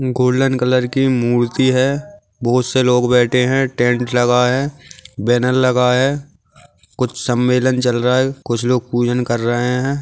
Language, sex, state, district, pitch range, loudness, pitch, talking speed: Hindi, male, Maharashtra, Aurangabad, 120-130 Hz, -16 LUFS, 125 Hz, 160 wpm